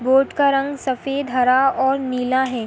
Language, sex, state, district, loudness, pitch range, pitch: Hindi, female, Uttar Pradesh, Hamirpur, -19 LUFS, 255-275 Hz, 265 Hz